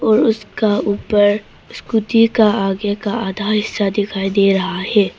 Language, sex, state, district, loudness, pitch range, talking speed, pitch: Hindi, female, Arunachal Pradesh, Papum Pare, -16 LUFS, 200-215 Hz, 150 wpm, 205 Hz